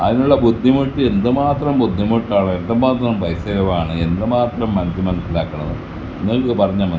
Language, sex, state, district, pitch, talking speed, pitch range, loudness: Malayalam, male, Kerala, Kasaragod, 105 Hz, 110 wpm, 90-120 Hz, -17 LUFS